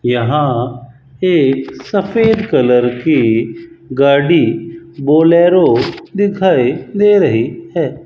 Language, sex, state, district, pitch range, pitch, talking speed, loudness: Hindi, male, Rajasthan, Bikaner, 125-175 Hz, 155 Hz, 80 wpm, -13 LUFS